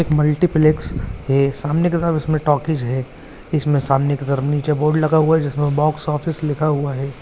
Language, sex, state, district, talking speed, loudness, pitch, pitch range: Hindi, male, Jharkhand, Jamtara, 200 wpm, -18 LUFS, 150 Hz, 140-155 Hz